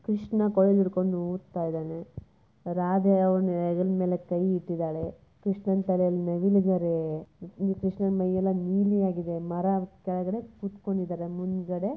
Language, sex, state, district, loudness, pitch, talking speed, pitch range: Kannada, male, Karnataka, Bijapur, -28 LUFS, 185 Hz, 115 wpm, 175-195 Hz